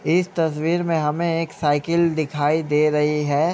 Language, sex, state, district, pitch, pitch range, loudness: Hindi, male, Uttar Pradesh, Hamirpur, 155 Hz, 150-170 Hz, -21 LUFS